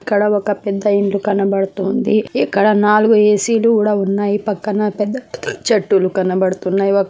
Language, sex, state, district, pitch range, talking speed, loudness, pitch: Telugu, female, Andhra Pradesh, Anantapur, 195-215 Hz, 150 wpm, -16 LUFS, 205 Hz